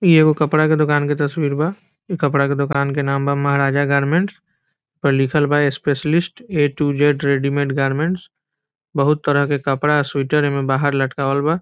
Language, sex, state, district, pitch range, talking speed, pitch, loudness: Hindi, male, Bihar, Saran, 140-155 Hz, 190 wpm, 145 Hz, -18 LUFS